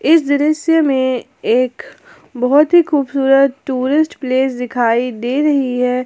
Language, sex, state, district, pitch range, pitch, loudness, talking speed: Hindi, female, Jharkhand, Palamu, 250-295 Hz, 265 Hz, -15 LUFS, 130 wpm